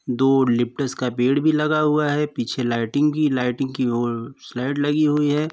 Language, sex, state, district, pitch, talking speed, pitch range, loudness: Hindi, male, Uttar Pradesh, Varanasi, 135 Hz, 195 wpm, 125-150 Hz, -21 LUFS